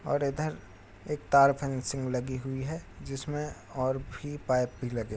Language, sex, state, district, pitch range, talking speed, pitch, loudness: Hindi, male, Bihar, Bhagalpur, 125-145 Hz, 175 wpm, 135 Hz, -31 LUFS